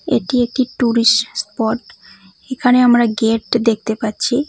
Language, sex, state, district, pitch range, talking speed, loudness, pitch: Bengali, female, West Bengal, Cooch Behar, 220-250 Hz, 120 wpm, -16 LUFS, 235 Hz